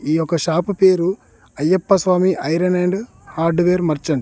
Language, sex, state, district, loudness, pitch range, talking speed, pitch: Telugu, male, Telangana, Mahabubabad, -17 LUFS, 160-185 Hz, 155 wpm, 175 Hz